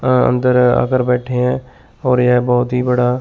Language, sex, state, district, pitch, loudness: Hindi, male, Chandigarh, Chandigarh, 125 Hz, -15 LUFS